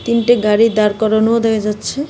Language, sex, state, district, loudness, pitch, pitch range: Bengali, female, Tripura, West Tripura, -14 LUFS, 220 Hz, 215-235 Hz